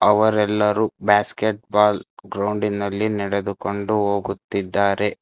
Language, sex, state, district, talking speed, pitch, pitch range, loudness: Kannada, male, Karnataka, Bangalore, 70 wpm, 105 Hz, 100-105 Hz, -21 LUFS